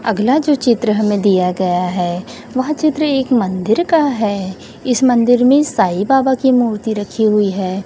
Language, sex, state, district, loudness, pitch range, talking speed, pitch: Hindi, female, Chhattisgarh, Raipur, -15 LUFS, 200-265 Hz, 175 wpm, 230 Hz